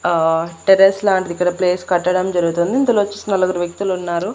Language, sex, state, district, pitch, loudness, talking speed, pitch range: Telugu, female, Andhra Pradesh, Annamaya, 180 Hz, -17 LUFS, 165 wpm, 175-195 Hz